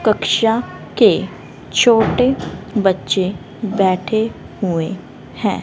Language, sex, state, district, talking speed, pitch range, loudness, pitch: Hindi, female, Haryana, Rohtak, 75 wpm, 185-225 Hz, -17 LUFS, 200 Hz